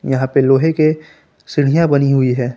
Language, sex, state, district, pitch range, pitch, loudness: Hindi, male, Jharkhand, Palamu, 135-155 Hz, 140 Hz, -14 LUFS